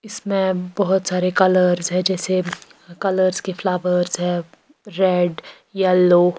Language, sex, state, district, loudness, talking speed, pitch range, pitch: Hindi, female, Bihar, Patna, -19 LUFS, 120 wpm, 180-190 Hz, 185 Hz